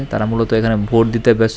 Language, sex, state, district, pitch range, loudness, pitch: Bengali, male, Tripura, West Tripura, 110-115 Hz, -16 LUFS, 115 Hz